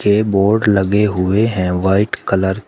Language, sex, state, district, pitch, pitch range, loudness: Hindi, male, Uttar Pradesh, Shamli, 100 Hz, 95-105 Hz, -15 LUFS